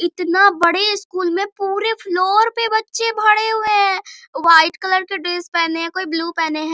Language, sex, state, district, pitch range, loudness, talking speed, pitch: Hindi, female, Bihar, Bhagalpur, 345-425 Hz, -16 LUFS, 195 wpm, 380 Hz